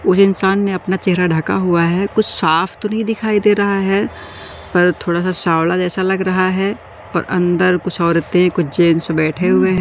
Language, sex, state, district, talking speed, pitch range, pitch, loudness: Hindi, male, Madhya Pradesh, Katni, 195 wpm, 175-195 Hz, 185 Hz, -15 LUFS